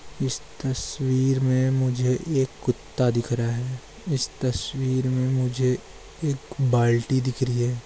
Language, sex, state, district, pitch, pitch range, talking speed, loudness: Hindi, male, Chhattisgarh, Bastar, 130 Hz, 125-135 Hz, 135 wpm, -25 LUFS